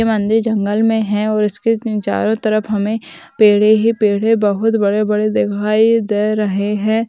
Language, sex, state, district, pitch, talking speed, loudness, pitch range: Hindi, female, West Bengal, Dakshin Dinajpur, 215 Hz, 160 wpm, -15 LUFS, 210-225 Hz